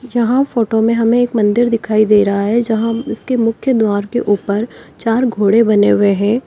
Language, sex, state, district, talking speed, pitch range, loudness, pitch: Hindi, female, Uttar Pradesh, Lalitpur, 195 wpm, 210-240 Hz, -14 LUFS, 225 Hz